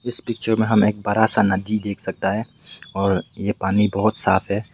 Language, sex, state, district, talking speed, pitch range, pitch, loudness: Hindi, male, Meghalaya, West Garo Hills, 215 wpm, 100-110 Hz, 105 Hz, -20 LUFS